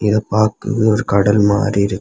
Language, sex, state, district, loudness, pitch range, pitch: Tamil, male, Tamil Nadu, Kanyakumari, -15 LUFS, 100-110 Hz, 105 Hz